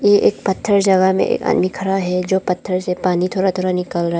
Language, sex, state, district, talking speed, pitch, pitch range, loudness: Hindi, female, Arunachal Pradesh, Papum Pare, 255 wpm, 185 Hz, 180-190 Hz, -17 LUFS